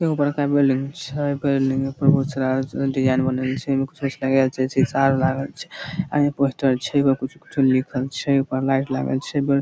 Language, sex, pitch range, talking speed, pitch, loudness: Maithili, male, 130-140 Hz, 230 wpm, 135 Hz, -21 LUFS